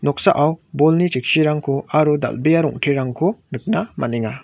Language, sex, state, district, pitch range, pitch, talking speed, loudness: Garo, male, Meghalaya, West Garo Hills, 140-165 Hz, 150 Hz, 110 wpm, -18 LUFS